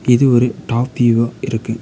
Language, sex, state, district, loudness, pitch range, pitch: Tamil, male, Tamil Nadu, Nilgiris, -16 LUFS, 115-125 Hz, 120 Hz